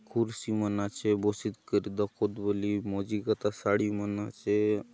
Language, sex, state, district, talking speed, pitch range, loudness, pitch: Halbi, male, Chhattisgarh, Bastar, 145 wpm, 100-105 Hz, -31 LUFS, 105 Hz